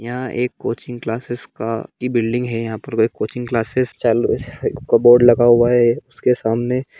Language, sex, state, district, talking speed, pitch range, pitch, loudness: Hindi, male, Jharkhand, Sahebganj, 165 wpm, 115-125 Hz, 120 Hz, -18 LUFS